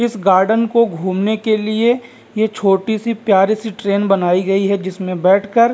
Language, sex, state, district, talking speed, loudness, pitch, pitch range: Hindi, male, Bihar, Vaishali, 175 wpm, -16 LUFS, 205 Hz, 195-225 Hz